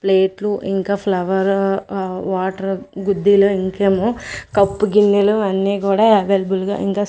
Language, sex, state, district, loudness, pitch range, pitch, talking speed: Telugu, female, Andhra Pradesh, Manyam, -17 LUFS, 190-200 Hz, 195 Hz, 120 wpm